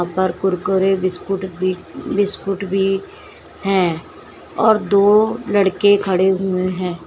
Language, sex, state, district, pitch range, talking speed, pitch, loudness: Hindi, female, Uttar Pradesh, Shamli, 185-200 Hz, 110 wpm, 190 Hz, -18 LUFS